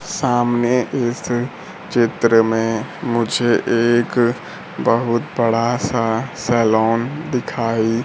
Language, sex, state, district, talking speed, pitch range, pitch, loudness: Hindi, male, Bihar, Kaimur, 80 wpm, 115-125 Hz, 120 Hz, -18 LUFS